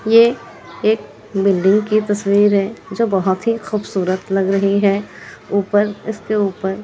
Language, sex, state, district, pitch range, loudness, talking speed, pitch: Hindi, female, Bihar, Kishanganj, 195-215 Hz, -17 LUFS, 150 wpm, 200 Hz